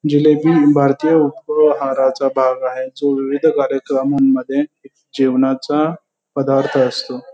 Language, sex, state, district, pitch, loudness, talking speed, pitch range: Marathi, male, Maharashtra, Pune, 140 Hz, -16 LUFS, 90 wpm, 135-150 Hz